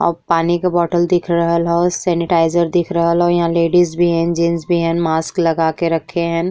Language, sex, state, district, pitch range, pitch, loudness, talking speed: Bhojpuri, female, Uttar Pradesh, Ghazipur, 165-175 Hz, 170 Hz, -16 LUFS, 210 wpm